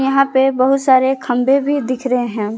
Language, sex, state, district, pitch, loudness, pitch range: Hindi, female, Jharkhand, Garhwa, 265 Hz, -15 LUFS, 250-270 Hz